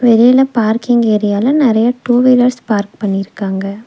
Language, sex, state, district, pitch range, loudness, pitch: Tamil, female, Tamil Nadu, Nilgiris, 205-245 Hz, -12 LUFS, 230 Hz